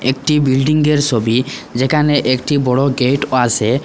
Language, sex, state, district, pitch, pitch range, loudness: Bengali, male, Assam, Hailakandi, 130 Hz, 125-145 Hz, -15 LUFS